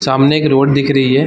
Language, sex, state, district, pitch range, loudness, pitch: Hindi, male, Bihar, Darbhanga, 135-140 Hz, -12 LUFS, 140 Hz